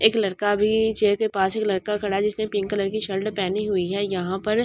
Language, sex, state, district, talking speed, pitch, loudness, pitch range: Hindi, female, Delhi, New Delhi, 260 wpm, 205 Hz, -23 LUFS, 195-215 Hz